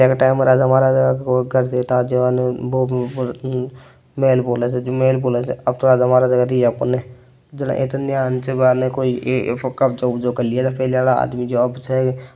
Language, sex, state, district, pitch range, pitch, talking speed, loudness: Marwari, male, Rajasthan, Nagaur, 125-130 Hz, 130 Hz, 65 wpm, -18 LUFS